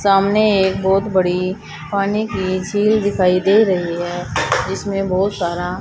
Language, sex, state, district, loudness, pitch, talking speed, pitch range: Hindi, female, Haryana, Charkhi Dadri, -17 LUFS, 190 Hz, 145 wpm, 180-200 Hz